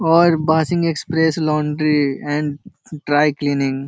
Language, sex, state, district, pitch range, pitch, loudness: Hindi, male, Bihar, Jahanabad, 145-160 Hz, 155 Hz, -18 LUFS